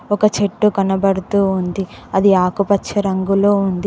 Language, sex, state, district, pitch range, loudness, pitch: Telugu, female, Telangana, Mahabubabad, 190-205 Hz, -16 LUFS, 195 Hz